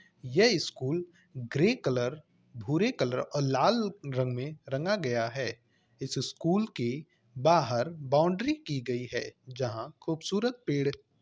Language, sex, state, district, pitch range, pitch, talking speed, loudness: Hindi, male, Uttar Pradesh, Hamirpur, 125-165 Hz, 140 Hz, 135 wpm, -30 LUFS